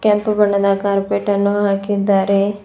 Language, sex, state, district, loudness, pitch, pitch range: Kannada, female, Karnataka, Bidar, -16 LUFS, 200 Hz, 200-205 Hz